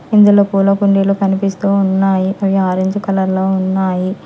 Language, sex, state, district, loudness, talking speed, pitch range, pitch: Telugu, female, Telangana, Hyderabad, -14 LUFS, 140 wpm, 190-200 Hz, 195 Hz